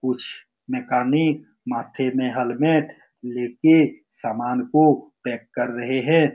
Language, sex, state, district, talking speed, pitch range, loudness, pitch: Hindi, male, Bihar, Saran, 125 wpm, 125-155 Hz, -22 LUFS, 130 Hz